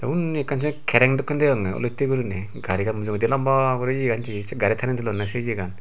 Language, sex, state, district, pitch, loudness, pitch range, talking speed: Chakma, male, Tripura, Unakoti, 125 Hz, -23 LUFS, 105-135 Hz, 205 wpm